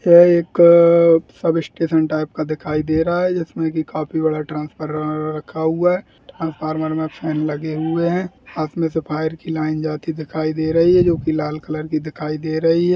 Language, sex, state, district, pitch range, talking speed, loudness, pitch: Hindi, male, Bihar, Gaya, 155-165 Hz, 205 wpm, -18 LUFS, 160 Hz